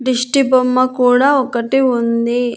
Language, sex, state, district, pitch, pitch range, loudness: Telugu, female, Andhra Pradesh, Annamaya, 250 Hz, 240-260 Hz, -14 LUFS